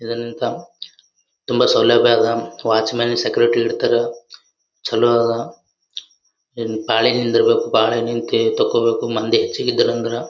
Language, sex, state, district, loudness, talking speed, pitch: Kannada, male, Karnataka, Gulbarga, -17 LUFS, 110 wpm, 120 Hz